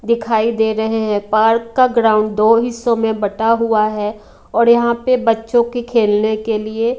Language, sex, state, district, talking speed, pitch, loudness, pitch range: Hindi, female, Haryana, Rohtak, 180 wpm, 225 Hz, -15 LUFS, 215-235 Hz